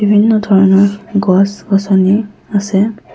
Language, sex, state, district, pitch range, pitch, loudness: Assamese, female, Assam, Kamrup Metropolitan, 195-210 Hz, 200 Hz, -12 LUFS